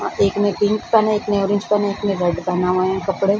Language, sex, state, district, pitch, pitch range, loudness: Hindi, female, Bihar, Samastipur, 200 Hz, 190-205 Hz, -19 LUFS